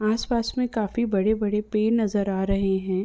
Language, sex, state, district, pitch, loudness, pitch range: Hindi, female, Uttar Pradesh, Ghazipur, 215 Hz, -24 LUFS, 195-225 Hz